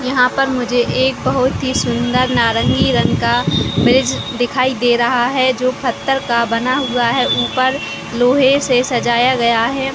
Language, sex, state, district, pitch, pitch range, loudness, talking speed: Hindi, female, Chhattisgarh, Raigarh, 250 Hz, 240-260 Hz, -15 LUFS, 165 wpm